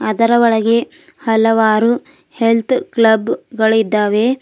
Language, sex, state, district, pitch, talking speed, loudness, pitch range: Kannada, female, Karnataka, Bidar, 230 Hz, 95 wpm, -14 LUFS, 220-245 Hz